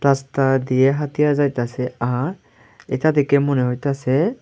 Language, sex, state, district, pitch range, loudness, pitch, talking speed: Bengali, male, Tripura, Dhalai, 130-145 Hz, -19 LUFS, 135 Hz, 120 wpm